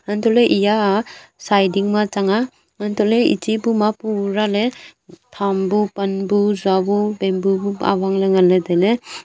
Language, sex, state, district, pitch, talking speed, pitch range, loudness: Wancho, female, Arunachal Pradesh, Longding, 205 Hz, 130 wpm, 195-215 Hz, -18 LUFS